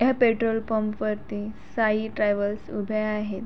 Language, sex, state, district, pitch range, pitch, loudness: Marathi, female, Maharashtra, Sindhudurg, 210-225 Hz, 215 Hz, -26 LUFS